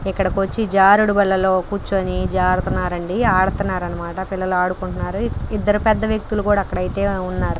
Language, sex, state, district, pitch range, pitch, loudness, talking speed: Telugu, female, Andhra Pradesh, Krishna, 185-205 Hz, 190 Hz, -19 LUFS, 150 wpm